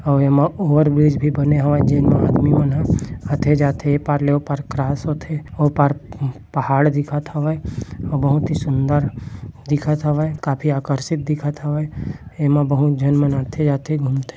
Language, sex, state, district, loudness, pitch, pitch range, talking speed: Chhattisgarhi, male, Chhattisgarh, Bilaspur, -18 LUFS, 145 Hz, 140-150 Hz, 165 wpm